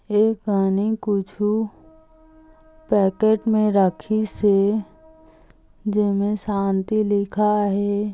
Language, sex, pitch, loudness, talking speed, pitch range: Chhattisgarhi, female, 210 Hz, -21 LUFS, 80 wpm, 200-220 Hz